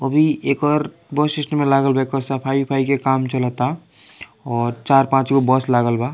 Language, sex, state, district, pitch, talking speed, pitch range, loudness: Bhojpuri, male, Bihar, East Champaran, 135 Hz, 175 wpm, 130-140 Hz, -18 LUFS